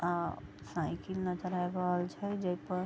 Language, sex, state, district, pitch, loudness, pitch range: Maithili, female, Bihar, Vaishali, 180 Hz, -36 LUFS, 175-185 Hz